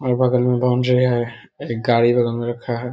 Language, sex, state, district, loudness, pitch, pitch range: Hindi, male, Bihar, Saharsa, -19 LUFS, 120 Hz, 120-125 Hz